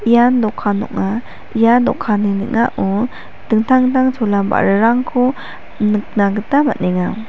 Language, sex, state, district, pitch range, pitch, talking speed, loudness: Garo, female, Meghalaya, West Garo Hills, 205-250 Hz, 225 Hz, 105 wpm, -16 LUFS